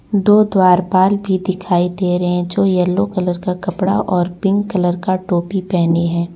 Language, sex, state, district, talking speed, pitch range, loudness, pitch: Hindi, female, Jharkhand, Deoghar, 170 wpm, 180-195 Hz, -16 LUFS, 185 Hz